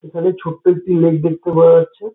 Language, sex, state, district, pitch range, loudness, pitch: Bengali, male, West Bengal, Dakshin Dinajpur, 165-180 Hz, -14 LUFS, 170 Hz